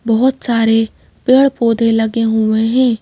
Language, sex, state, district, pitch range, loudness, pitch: Hindi, female, Madhya Pradesh, Bhopal, 225-245 Hz, -14 LUFS, 230 Hz